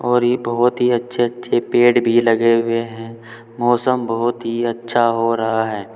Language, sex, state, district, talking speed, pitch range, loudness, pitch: Hindi, male, Uttar Pradesh, Saharanpur, 180 wpm, 115-120 Hz, -17 LUFS, 120 Hz